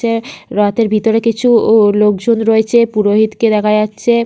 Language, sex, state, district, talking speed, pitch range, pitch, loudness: Bengali, female, West Bengal, Malda, 125 wpm, 210-230 Hz, 220 Hz, -12 LUFS